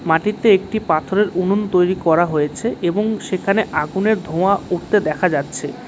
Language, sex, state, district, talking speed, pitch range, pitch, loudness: Bengali, male, West Bengal, Cooch Behar, 145 wpm, 170-210 Hz, 185 Hz, -18 LUFS